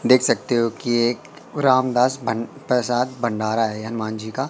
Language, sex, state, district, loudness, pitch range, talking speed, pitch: Hindi, male, Madhya Pradesh, Katni, -21 LUFS, 115-130 Hz, 175 wpm, 120 Hz